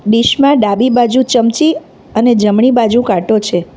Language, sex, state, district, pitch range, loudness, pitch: Gujarati, female, Gujarat, Valsad, 210-250 Hz, -11 LUFS, 235 Hz